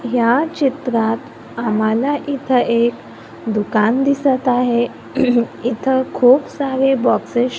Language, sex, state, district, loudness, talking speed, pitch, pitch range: Marathi, female, Maharashtra, Gondia, -17 LUFS, 105 wpm, 250 Hz, 235-270 Hz